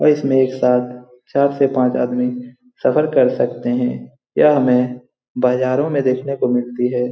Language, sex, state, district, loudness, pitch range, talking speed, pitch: Hindi, male, Bihar, Lakhisarai, -17 LUFS, 125-130 Hz, 170 wpm, 125 Hz